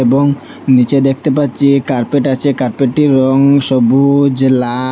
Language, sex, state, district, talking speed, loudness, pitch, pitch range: Bengali, male, Assam, Hailakandi, 120 wpm, -12 LUFS, 135 Hz, 130-140 Hz